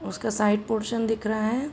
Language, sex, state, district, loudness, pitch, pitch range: Hindi, female, Uttar Pradesh, Gorakhpur, -26 LUFS, 220 Hz, 215-230 Hz